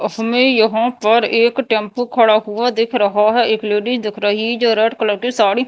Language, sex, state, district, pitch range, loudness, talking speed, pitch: Hindi, female, Madhya Pradesh, Dhar, 215-240 Hz, -15 LUFS, 200 wpm, 225 Hz